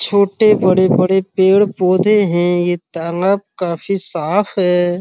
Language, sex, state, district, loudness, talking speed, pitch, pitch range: Hindi, male, Uttar Pradesh, Muzaffarnagar, -14 LUFS, 105 wpm, 185 Hz, 175-200 Hz